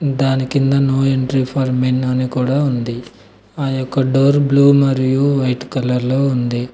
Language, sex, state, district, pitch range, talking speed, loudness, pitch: Telugu, male, Telangana, Mahabubabad, 125-135 Hz, 160 wpm, -16 LUFS, 130 Hz